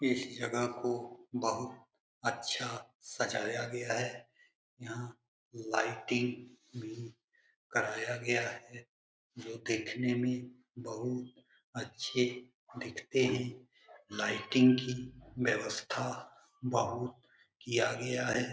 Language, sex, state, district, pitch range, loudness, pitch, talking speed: Hindi, male, Bihar, Jamui, 120-125 Hz, -35 LUFS, 125 Hz, 90 wpm